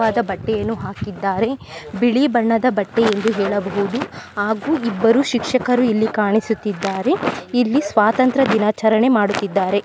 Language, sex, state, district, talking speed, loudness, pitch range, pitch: Kannada, female, Karnataka, Mysore, 105 wpm, -18 LUFS, 205-245 Hz, 220 Hz